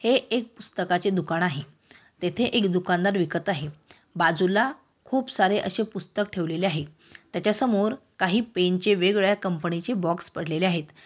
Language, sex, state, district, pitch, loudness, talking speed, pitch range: Marathi, female, Maharashtra, Aurangabad, 185 Hz, -25 LUFS, 140 wpm, 170-210 Hz